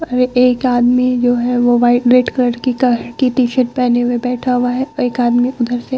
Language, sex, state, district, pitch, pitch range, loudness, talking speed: Hindi, female, Bihar, Vaishali, 245 Hz, 245-250 Hz, -14 LUFS, 230 wpm